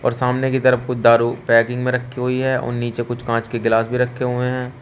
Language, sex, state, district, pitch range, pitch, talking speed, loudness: Hindi, male, Uttar Pradesh, Shamli, 120-125 Hz, 125 Hz, 250 wpm, -19 LUFS